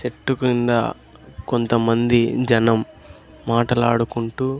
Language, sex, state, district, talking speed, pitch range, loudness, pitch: Telugu, male, Andhra Pradesh, Sri Satya Sai, 65 wpm, 115-120 Hz, -19 LUFS, 115 Hz